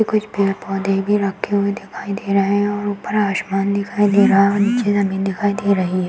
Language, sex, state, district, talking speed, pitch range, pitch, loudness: Hindi, female, Uttar Pradesh, Varanasi, 245 wpm, 195-205 Hz, 200 Hz, -18 LUFS